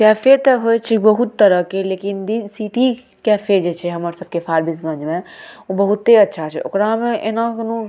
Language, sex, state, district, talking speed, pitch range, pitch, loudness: Maithili, female, Bihar, Madhepura, 190 wpm, 185-230 Hz, 210 Hz, -17 LUFS